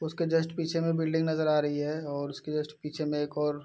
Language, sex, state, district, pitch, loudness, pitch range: Hindi, male, Bihar, Araria, 150 Hz, -30 LUFS, 150-160 Hz